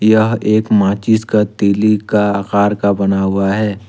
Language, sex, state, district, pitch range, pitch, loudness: Hindi, male, Jharkhand, Deoghar, 100-110 Hz, 105 Hz, -14 LUFS